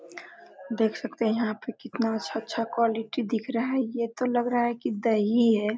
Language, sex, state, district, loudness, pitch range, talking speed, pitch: Hindi, female, Jharkhand, Sahebganj, -27 LUFS, 220-240 Hz, 220 wpm, 230 Hz